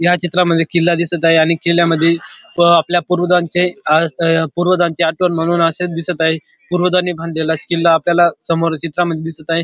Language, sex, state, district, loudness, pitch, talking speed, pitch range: Marathi, male, Maharashtra, Dhule, -15 LUFS, 170 Hz, 150 wpm, 165-175 Hz